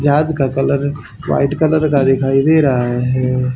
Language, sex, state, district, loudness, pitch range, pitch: Hindi, male, Haryana, Charkhi Dadri, -15 LUFS, 130-145 Hz, 135 Hz